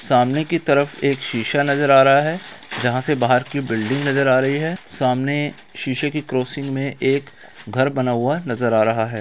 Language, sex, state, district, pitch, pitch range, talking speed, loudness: Hindi, male, Bihar, Gaya, 135 Hz, 125-145 Hz, 210 wpm, -19 LUFS